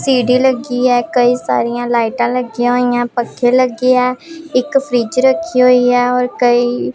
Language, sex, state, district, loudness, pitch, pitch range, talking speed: Punjabi, female, Punjab, Pathankot, -14 LUFS, 245 Hz, 245-255 Hz, 140 wpm